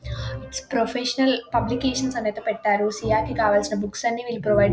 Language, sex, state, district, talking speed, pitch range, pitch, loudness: Telugu, female, Telangana, Nalgonda, 165 wpm, 210-245 Hz, 230 Hz, -23 LUFS